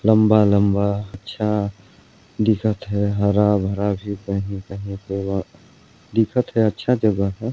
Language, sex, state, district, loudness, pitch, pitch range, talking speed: Chhattisgarhi, male, Chhattisgarh, Balrampur, -20 LUFS, 100 Hz, 100-110 Hz, 110 wpm